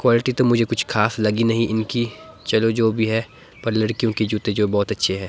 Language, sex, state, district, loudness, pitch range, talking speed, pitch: Hindi, male, Himachal Pradesh, Shimla, -20 LUFS, 110-115 Hz, 225 wpm, 110 Hz